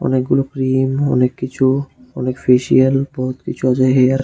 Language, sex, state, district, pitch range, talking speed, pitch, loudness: Bengali, male, Tripura, West Tripura, 130-135 Hz, 155 wpm, 130 Hz, -16 LUFS